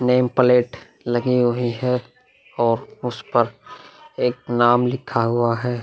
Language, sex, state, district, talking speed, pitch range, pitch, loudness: Hindi, male, Uttar Pradesh, Hamirpur, 125 wpm, 120-125 Hz, 120 Hz, -20 LUFS